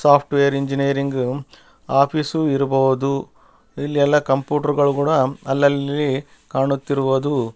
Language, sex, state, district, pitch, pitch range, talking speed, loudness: Kannada, male, Karnataka, Bellary, 140 Hz, 135-145 Hz, 95 wpm, -19 LUFS